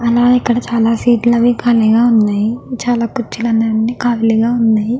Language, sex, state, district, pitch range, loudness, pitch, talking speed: Telugu, female, Andhra Pradesh, Chittoor, 225-240 Hz, -13 LUFS, 235 Hz, 155 wpm